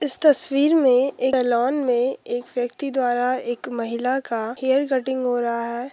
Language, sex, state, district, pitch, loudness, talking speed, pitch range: Hindi, female, Uttar Pradesh, Hamirpur, 250 Hz, -19 LUFS, 170 wpm, 240-270 Hz